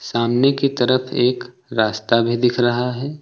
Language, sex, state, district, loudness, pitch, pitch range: Hindi, male, Uttar Pradesh, Lucknow, -18 LUFS, 125 Hz, 120-130 Hz